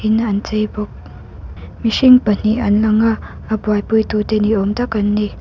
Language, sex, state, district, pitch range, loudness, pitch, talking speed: Mizo, female, Mizoram, Aizawl, 210-220 Hz, -16 LUFS, 215 Hz, 200 wpm